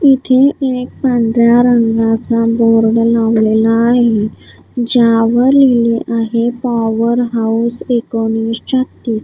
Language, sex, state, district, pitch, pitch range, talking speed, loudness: Marathi, female, Maharashtra, Gondia, 235 Hz, 225-245 Hz, 90 wpm, -12 LUFS